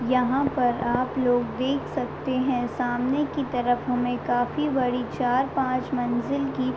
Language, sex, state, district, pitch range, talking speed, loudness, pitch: Hindi, female, Uttar Pradesh, Deoria, 245-265 Hz, 150 wpm, -25 LUFS, 255 Hz